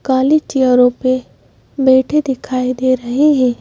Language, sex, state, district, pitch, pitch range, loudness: Hindi, female, Madhya Pradesh, Bhopal, 260 Hz, 255-275 Hz, -14 LUFS